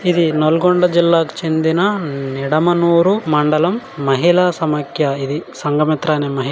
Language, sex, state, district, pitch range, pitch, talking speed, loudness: Telugu, male, Telangana, Nalgonda, 150-175 Hz, 160 Hz, 130 wpm, -16 LUFS